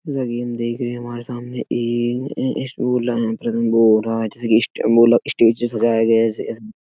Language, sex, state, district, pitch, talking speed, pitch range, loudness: Hindi, male, Uttar Pradesh, Etah, 120 Hz, 190 wpm, 115-120 Hz, -19 LUFS